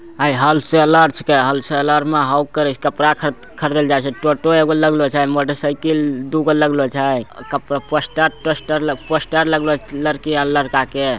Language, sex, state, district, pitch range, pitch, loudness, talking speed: Angika, male, Bihar, Bhagalpur, 140-155 Hz, 145 Hz, -16 LUFS, 155 wpm